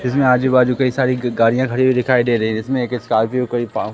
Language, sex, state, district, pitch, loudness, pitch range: Hindi, male, Madhya Pradesh, Katni, 125 Hz, -17 LUFS, 120-130 Hz